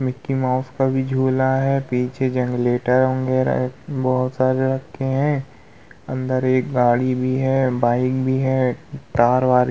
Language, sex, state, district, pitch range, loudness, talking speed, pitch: Hindi, male, Bihar, Vaishali, 125-130 Hz, -20 LUFS, 150 wpm, 130 Hz